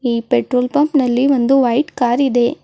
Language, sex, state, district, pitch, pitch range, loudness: Kannada, female, Karnataka, Bidar, 250 Hz, 240-275 Hz, -15 LUFS